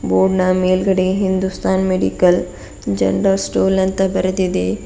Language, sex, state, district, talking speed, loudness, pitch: Kannada, female, Karnataka, Bidar, 100 wpm, -16 LUFS, 185 Hz